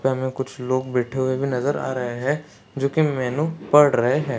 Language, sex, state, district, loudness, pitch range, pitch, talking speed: Marathi, male, Maharashtra, Sindhudurg, -22 LUFS, 125-145 Hz, 130 Hz, 205 wpm